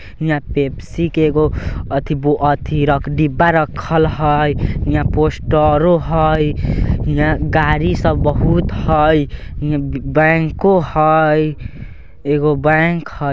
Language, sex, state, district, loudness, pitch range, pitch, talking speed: Bajjika, male, Bihar, Vaishali, -15 LUFS, 145-155 Hz, 150 Hz, 110 wpm